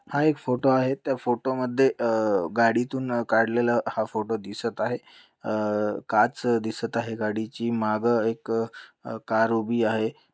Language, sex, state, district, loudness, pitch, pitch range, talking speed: Marathi, male, Maharashtra, Pune, -25 LUFS, 115 Hz, 110-125 Hz, 145 wpm